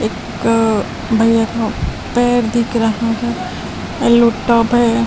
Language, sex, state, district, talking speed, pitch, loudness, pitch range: Hindi, female, Delhi, New Delhi, 130 wpm, 230 Hz, -15 LUFS, 225-235 Hz